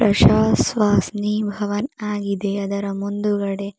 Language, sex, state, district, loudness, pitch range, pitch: Kannada, female, Karnataka, Bidar, -20 LUFS, 200-210 Hz, 205 Hz